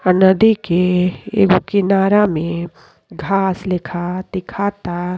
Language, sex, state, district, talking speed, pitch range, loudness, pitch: Bhojpuri, female, Uttar Pradesh, Deoria, 105 wpm, 175-195 Hz, -16 LUFS, 185 Hz